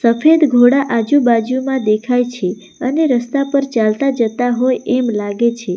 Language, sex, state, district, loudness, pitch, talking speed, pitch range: Gujarati, female, Gujarat, Valsad, -15 LUFS, 245 Hz, 145 wpm, 230-270 Hz